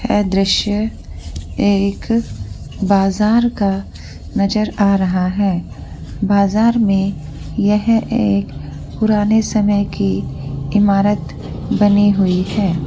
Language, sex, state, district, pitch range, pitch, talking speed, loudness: Hindi, female, Rajasthan, Churu, 185-210 Hz, 200 Hz, 95 wpm, -16 LUFS